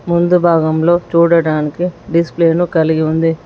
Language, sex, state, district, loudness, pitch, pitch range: Telugu, female, Telangana, Mahabubabad, -13 LUFS, 170 Hz, 160-170 Hz